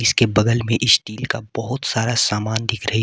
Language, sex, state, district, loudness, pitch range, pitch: Hindi, male, Jharkhand, Garhwa, -19 LUFS, 110-120 Hz, 115 Hz